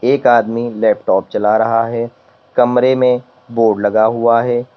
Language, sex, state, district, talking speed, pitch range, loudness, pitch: Hindi, male, Uttar Pradesh, Lalitpur, 150 wpm, 115-125 Hz, -14 LUFS, 115 Hz